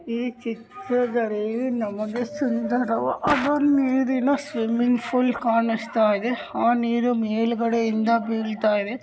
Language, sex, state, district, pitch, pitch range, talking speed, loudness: Kannada, female, Karnataka, Gulbarga, 235 Hz, 225-250 Hz, 85 wpm, -23 LUFS